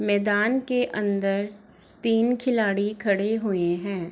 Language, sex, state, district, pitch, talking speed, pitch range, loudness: Hindi, female, Bihar, East Champaran, 205 Hz, 115 wpm, 200-225 Hz, -24 LUFS